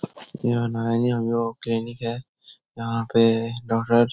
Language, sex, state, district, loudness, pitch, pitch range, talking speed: Hindi, male, Bihar, Jahanabad, -24 LUFS, 115 Hz, 115-120 Hz, 100 wpm